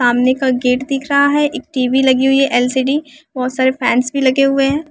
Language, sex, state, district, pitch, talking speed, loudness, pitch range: Hindi, female, Bihar, West Champaran, 265 Hz, 230 wpm, -15 LUFS, 255-280 Hz